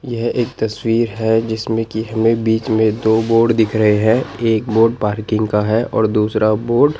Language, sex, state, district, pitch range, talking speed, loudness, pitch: Hindi, male, Chandigarh, Chandigarh, 110-115 Hz, 195 wpm, -16 LUFS, 110 Hz